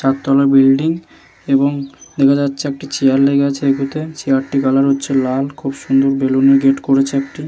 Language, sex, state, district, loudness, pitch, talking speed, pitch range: Bengali, male, West Bengal, Jalpaiguri, -15 LUFS, 135 Hz, 175 wpm, 135-140 Hz